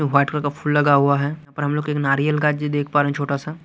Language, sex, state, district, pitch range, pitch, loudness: Hindi, male, Chhattisgarh, Raipur, 140-150 Hz, 145 Hz, -20 LUFS